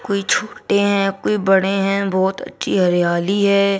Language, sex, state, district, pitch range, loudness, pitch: Hindi, female, Bihar, Gaya, 190-200 Hz, -17 LUFS, 195 Hz